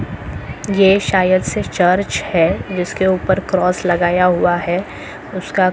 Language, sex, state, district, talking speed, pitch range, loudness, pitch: Hindi, male, Maharashtra, Mumbai Suburban, 125 wpm, 175-190 Hz, -16 LUFS, 180 Hz